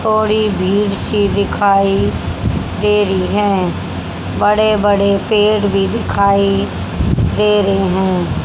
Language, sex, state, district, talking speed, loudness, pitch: Hindi, female, Haryana, Jhajjar, 105 wpm, -14 LUFS, 195 Hz